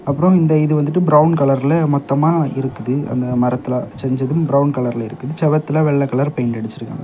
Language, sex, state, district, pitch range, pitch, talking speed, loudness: Tamil, male, Tamil Nadu, Kanyakumari, 125-155 Hz, 140 Hz, 160 wpm, -17 LUFS